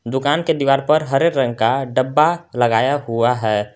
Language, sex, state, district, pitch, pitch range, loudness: Hindi, male, Jharkhand, Garhwa, 135 Hz, 120-150 Hz, -17 LUFS